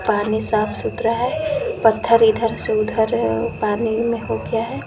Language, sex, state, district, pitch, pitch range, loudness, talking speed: Hindi, female, Jharkhand, Garhwa, 225 Hz, 215-230 Hz, -19 LUFS, 170 wpm